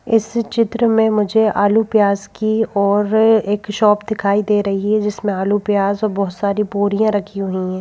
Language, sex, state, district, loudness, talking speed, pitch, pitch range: Hindi, female, Madhya Pradesh, Bhopal, -16 LUFS, 185 wpm, 210 Hz, 200-220 Hz